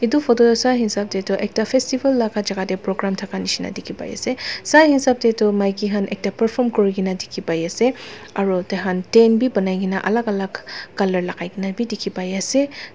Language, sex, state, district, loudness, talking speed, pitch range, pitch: Nagamese, female, Nagaland, Dimapur, -19 LUFS, 210 wpm, 195-235 Hz, 205 Hz